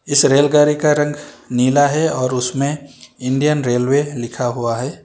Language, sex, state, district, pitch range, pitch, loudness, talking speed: Hindi, male, Karnataka, Bangalore, 125-150 Hz, 140 Hz, -16 LUFS, 155 wpm